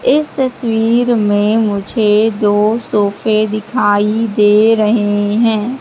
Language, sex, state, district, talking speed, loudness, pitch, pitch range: Hindi, female, Madhya Pradesh, Katni, 105 wpm, -13 LUFS, 215 Hz, 210-230 Hz